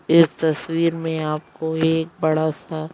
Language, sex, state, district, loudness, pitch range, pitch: Hindi, female, Madhya Pradesh, Bhopal, -21 LUFS, 155-165 Hz, 160 Hz